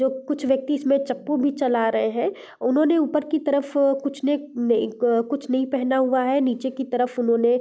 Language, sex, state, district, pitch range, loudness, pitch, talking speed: Hindi, female, Bihar, Gopalganj, 250-280 Hz, -22 LUFS, 265 Hz, 205 wpm